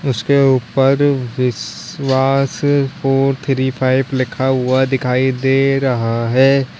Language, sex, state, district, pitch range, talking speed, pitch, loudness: Hindi, male, Uttar Pradesh, Lalitpur, 130-135 Hz, 105 wpm, 135 Hz, -15 LUFS